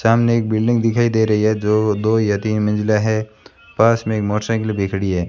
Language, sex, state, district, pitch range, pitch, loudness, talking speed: Hindi, male, Rajasthan, Bikaner, 105-115 Hz, 110 Hz, -17 LUFS, 225 wpm